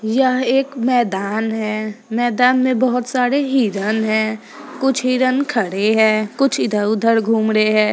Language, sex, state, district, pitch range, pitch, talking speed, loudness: Hindi, female, Bihar, East Champaran, 215-255 Hz, 225 Hz, 145 wpm, -17 LUFS